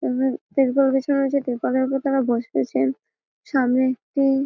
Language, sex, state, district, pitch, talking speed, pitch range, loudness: Bengali, female, West Bengal, Malda, 265 Hz, 135 wpm, 250-275 Hz, -21 LUFS